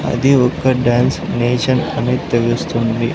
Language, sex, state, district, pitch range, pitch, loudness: Telugu, male, Andhra Pradesh, Sri Satya Sai, 120-130 Hz, 125 Hz, -16 LUFS